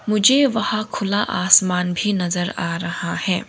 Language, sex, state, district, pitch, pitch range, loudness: Hindi, female, Arunachal Pradesh, Longding, 190 Hz, 175-210 Hz, -18 LUFS